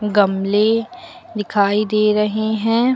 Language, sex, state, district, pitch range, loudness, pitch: Hindi, female, Uttar Pradesh, Lucknow, 205-225 Hz, -17 LUFS, 215 Hz